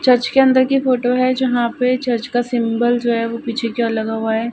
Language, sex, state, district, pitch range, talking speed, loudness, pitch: Hindi, female, Uttar Pradesh, Ghazipur, 230-255 Hz, 250 wpm, -17 LUFS, 240 Hz